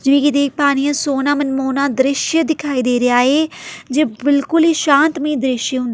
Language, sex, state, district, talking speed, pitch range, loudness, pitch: Punjabi, female, Delhi, New Delhi, 170 wpm, 265-300 Hz, -15 LUFS, 280 Hz